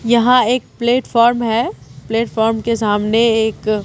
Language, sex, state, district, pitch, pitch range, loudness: Hindi, female, Bihar, Katihar, 230 Hz, 215-235 Hz, -15 LUFS